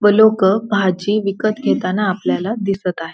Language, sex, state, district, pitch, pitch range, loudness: Marathi, female, Maharashtra, Pune, 200 Hz, 185-210 Hz, -17 LUFS